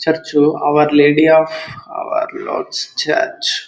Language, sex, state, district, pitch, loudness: Kannada, male, Karnataka, Dharwad, 160 Hz, -15 LUFS